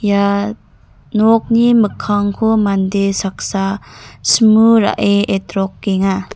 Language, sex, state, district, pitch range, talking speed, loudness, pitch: Garo, female, Meghalaya, North Garo Hills, 195-220 Hz, 75 wpm, -14 LUFS, 200 Hz